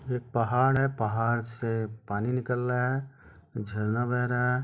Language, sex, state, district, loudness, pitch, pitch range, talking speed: Hindi, male, Jharkhand, Sahebganj, -29 LUFS, 125 Hz, 115-125 Hz, 170 wpm